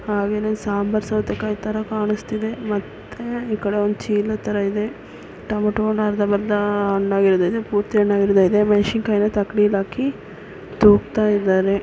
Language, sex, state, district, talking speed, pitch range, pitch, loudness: Kannada, female, Karnataka, Belgaum, 135 wpm, 205-215 Hz, 210 Hz, -20 LUFS